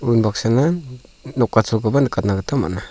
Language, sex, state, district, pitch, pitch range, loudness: Garo, male, Meghalaya, South Garo Hills, 115 Hz, 105-135 Hz, -19 LUFS